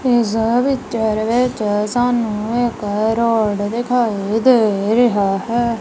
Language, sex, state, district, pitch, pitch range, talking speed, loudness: Punjabi, female, Punjab, Kapurthala, 225 Hz, 210-240 Hz, 105 wpm, -17 LUFS